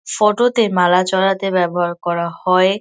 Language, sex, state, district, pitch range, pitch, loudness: Bengali, female, West Bengal, Kolkata, 175-195 Hz, 185 Hz, -16 LUFS